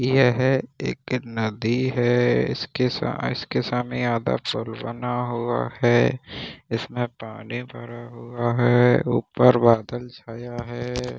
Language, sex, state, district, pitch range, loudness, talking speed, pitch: Hindi, male, Bihar, Kishanganj, 115-125 Hz, -23 LUFS, 120 wpm, 120 Hz